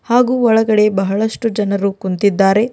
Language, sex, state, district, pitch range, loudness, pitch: Kannada, female, Karnataka, Bidar, 200-230 Hz, -15 LUFS, 210 Hz